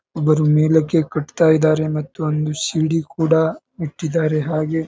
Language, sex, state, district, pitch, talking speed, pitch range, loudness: Kannada, male, Karnataka, Bijapur, 155 Hz, 125 wpm, 155-160 Hz, -18 LUFS